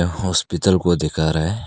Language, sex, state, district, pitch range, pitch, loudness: Hindi, male, Arunachal Pradesh, Papum Pare, 80-95 Hz, 85 Hz, -19 LUFS